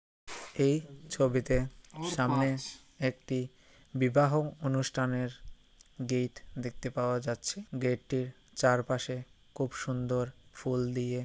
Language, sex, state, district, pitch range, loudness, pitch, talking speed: Bengali, male, West Bengal, Jalpaiguri, 125-135 Hz, -33 LUFS, 130 Hz, 90 wpm